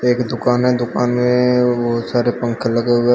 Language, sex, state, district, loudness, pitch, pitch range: Hindi, male, Uttar Pradesh, Shamli, -17 LUFS, 120 Hz, 120-125 Hz